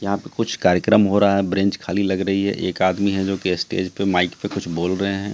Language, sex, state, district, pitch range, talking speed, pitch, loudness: Hindi, male, Bihar, Katihar, 95-100 Hz, 280 wpm, 95 Hz, -20 LUFS